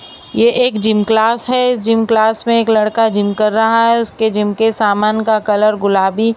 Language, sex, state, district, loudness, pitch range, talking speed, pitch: Hindi, female, Maharashtra, Mumbai Suburban, -13 LUFS, 215-230 Hz, 200 wpm, 220 Hz